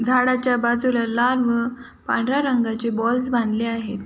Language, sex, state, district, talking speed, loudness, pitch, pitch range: Marathi, female, Maharashtra, Sindhudurg, 135 wpm, -21 LUFS, 235 Hz, 230-250 Hz